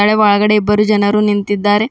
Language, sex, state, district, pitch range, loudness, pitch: Kannada, female, Karnataka, Bidar, 205-210 Hz, -13 LUFS, 210 Hz